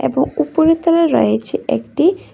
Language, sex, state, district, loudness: Bengali, female, Tripura, West Tripura, -15 LUFS